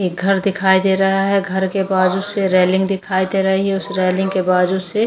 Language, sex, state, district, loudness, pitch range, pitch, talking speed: Hindi, female, Goa, North and South Goa, -17 LUFS, 185-195 Hz, 190 Hz, 235 wpm